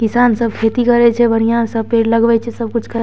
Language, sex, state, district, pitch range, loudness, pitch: Maithili, female, Bihar, Darbhanga, 225-235 Hz, -14 LUFS, 230 Hz